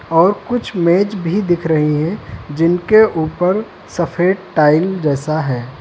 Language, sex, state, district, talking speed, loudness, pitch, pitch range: Hindi, male, Uttar Pradesh, Lucknow, 135 wpm, -15 LUFS, 170 Hz, 155-190 Hz